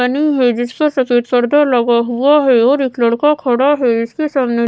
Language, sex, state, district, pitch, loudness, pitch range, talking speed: Hindi, female, Odisha, Sambalpur, 250 Hz, -13 LUFS, 240-290 Hz, 190 wpm